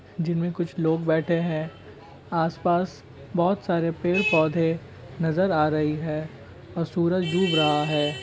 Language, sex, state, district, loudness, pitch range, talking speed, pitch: Hindi, male, Bihar, Saran, -24 LUFS, 150-175 Hz, 130 wpm, 160 Hz